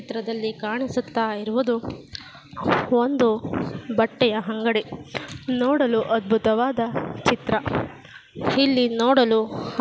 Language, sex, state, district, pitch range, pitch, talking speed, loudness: Kannada, female, Karnataka, Gulbarga, 225-250 Hz, 230 Hz, 60 wpm, -23 LUFS